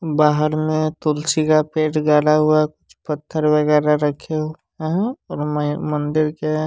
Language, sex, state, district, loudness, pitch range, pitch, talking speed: Hindi, male, Bihar, West Champaran, -19 LUFS, 150-155 Hz, 155 Hz, 145 wpm